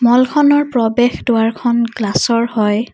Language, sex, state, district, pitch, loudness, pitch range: Assamese, female, Assam, Kamrup Metropolitan, 235 Hz, -14 LUFS, 225-245 Hz